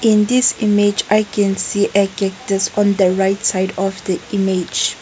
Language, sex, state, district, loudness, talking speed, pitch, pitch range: English, female, Nagaland, Kohima, -16 LUFS, 180 wpm, 200 Hz, 195-210 Hz